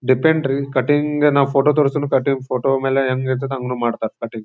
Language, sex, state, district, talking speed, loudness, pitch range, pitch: Kannada, male, Karnataka, Dharwad, 175 wpm, -18 LUFS, 130-145 Hz, 135 Hz